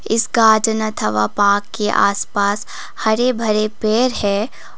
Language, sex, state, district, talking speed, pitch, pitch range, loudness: Hindi, female, Sikkim, Gangtok, 100 wpm, 215 Hz, 205-225 Hz, -17 LUFS